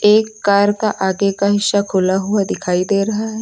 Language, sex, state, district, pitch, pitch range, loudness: Hindi, female, Uttar Pradesh, Lucknow, 200 Hz, 195-210 Hz, -16 LUFS